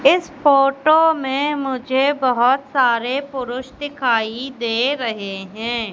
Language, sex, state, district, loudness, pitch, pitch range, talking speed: Hindi, female, Madhya Pradesh, Katni, -18 LUFS, 265 Hz, 240-280 Hz, 110 wpm